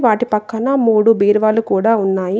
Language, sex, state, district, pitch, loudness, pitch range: Telugu, female, Telangana, Adilabad, 220 Hz, -15 LUFS, 205-225 Hz